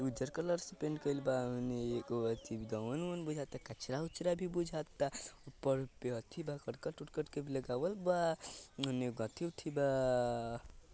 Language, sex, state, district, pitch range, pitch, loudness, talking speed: Hindi, male, Bihar, Vaishali, 120-155 Hz, 135 Hz, -39 LUFS, 45 wpm